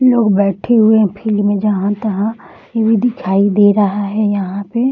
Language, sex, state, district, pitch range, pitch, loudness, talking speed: Hindi, female, Bihar, Jahanabad, 200-225 Hz, 210 Hz, -14 LUFS, 195 wpm